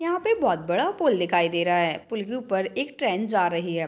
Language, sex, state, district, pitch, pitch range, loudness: Hindi, female, Bihar, Madhepura, 190 Hz, 175-270 Hz, -24 LUFS